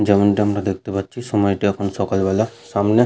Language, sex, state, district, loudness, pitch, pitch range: Bengali, male, West Bengal, Malda, -20 LUFS, 100 Hz, 100-105 Hz